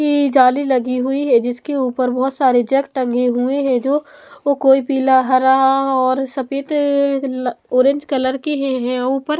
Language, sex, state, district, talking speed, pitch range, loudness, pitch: Hindi, female, Chandigarh, Chandigarh, 160 wpm, 255-280 Hz, -16 LUFS, 265 Hz